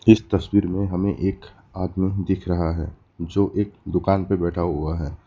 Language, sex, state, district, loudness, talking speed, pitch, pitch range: Hindi, male, West Bengal, Alipurduar, -23 LUFS, 180 wpm, 95 Hz, 85-100 Hz